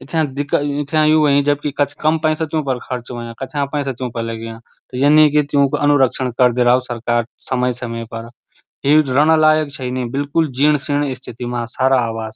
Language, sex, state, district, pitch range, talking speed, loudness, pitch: Garhwali, male, Uttarakhand, Uttarkashi, 125-150 Hz, 200 wpm, -18 LUFS, 140 Hz